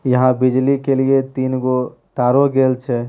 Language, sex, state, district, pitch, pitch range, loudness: Hindi, male, Bihar, Begusarai, 130 Hz, 130-135 Hz, -16 LUFS